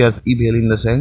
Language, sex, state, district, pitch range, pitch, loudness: Maithili, male, Bihar, Purnia, 110-120 Hz, 115 Hz, -16 LUFS